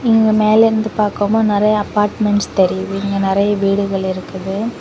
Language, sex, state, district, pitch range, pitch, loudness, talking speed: Tamil, female, Tamil Nadu, Kanyakumari, 195-215 Hz, 205 Hz, -15 LUFS, 135 wpm